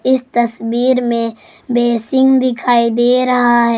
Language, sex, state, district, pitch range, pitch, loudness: Hindi, female, Jharkhand, Garhwa, 235-255 Hz, 240 Hz, -14 LUFS